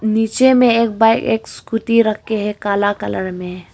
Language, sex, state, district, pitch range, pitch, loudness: Hindi, female, Arunachal Pradesh, Longding, 205-230 Hz, 220 Hz, -16 LUFS